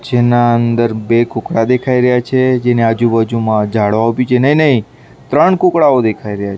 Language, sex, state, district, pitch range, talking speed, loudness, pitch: Gujarati, male, Maharashtra, Mumbai Suburban, 115-125 Hz, 165 wpm, -12 LUFS, 120 Hz